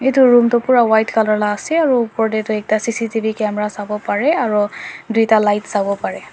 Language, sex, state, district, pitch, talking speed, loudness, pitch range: Nagamese, female, Nagaland, Dimapur, 220 Hz, 235 wpm, -16 LUFS, 210-235 Hz